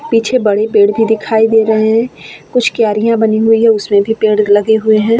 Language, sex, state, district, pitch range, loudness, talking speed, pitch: Hindi, female, Bihar, Vaishali, 215-225 Hz, -11 LUFS, 220 wpm, 220 Hz